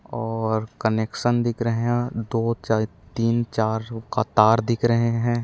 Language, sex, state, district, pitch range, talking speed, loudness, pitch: Chhattisgarhi, male, Chhattisgarh, Raigarh, 110-120 Hz, 155 wpm, -23 LUFS, 115 Hz